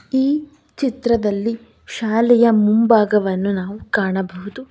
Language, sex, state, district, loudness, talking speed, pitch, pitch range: Kannada, female, Karnataka, Bangalore, -18 LUFS, 75 wpm, 225 Hz, 200-240 Hz